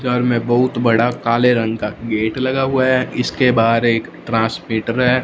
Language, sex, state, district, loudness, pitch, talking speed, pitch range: Hindi, male, Punjab, Fazilka, -17 LUFS, 120 Hz, 185 wpm, 115-125 Hz